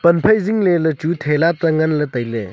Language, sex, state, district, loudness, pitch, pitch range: Wancho, male, Arunachal Pradesh, Longding, -17 LUFS, 160 Hz, 150-170 Hz